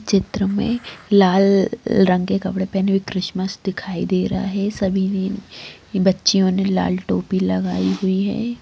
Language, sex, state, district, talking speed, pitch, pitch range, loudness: Hindi, female, Bihar, Lakhisarai, 145 wpm, 195 Hz, 185-200 Hz, -19 LUFS